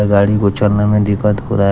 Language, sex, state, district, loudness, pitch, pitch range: Hindi, male, Jharkhand, Deoghar, -14 LUFS, 105 Hz, 100-105 Hz